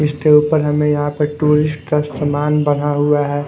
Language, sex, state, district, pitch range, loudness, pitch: Hindi, female, Himachal Pradesh, Shimla, 145-150 Hz, -15 LUFS, 150 Hz